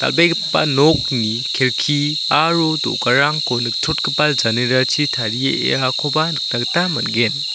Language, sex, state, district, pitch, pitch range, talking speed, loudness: Garo, male, Meghalaya, South Garo Hills, 140 Hz, 120-155 Hz, 85 wpm, -16 LUFS